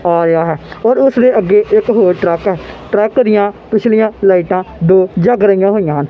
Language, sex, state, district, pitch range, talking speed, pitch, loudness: Punjabi, male, Punjab, Kapurthala, 180-220 Hz, 195 wpm, 200 Hz, -12 LUFS